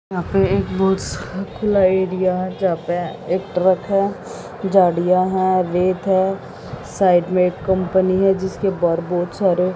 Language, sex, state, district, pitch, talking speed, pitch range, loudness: Hindi, female, Haryana, Jhajjar, 185 Hz, 160 wpm, 180-190 Hz, -18 LUFS